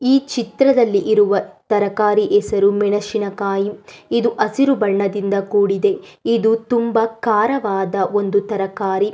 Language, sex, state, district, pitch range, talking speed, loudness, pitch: Kannada, female, Karnataka, Mysore, 200-230 Hz, 105 wpm, -17 LUFS, 210 Hz